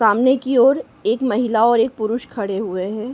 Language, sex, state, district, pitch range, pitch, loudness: Hindi, female, Uttar Pradesh, Ghazipur, 215-250 Hz, 230 Hz, -18 LUFS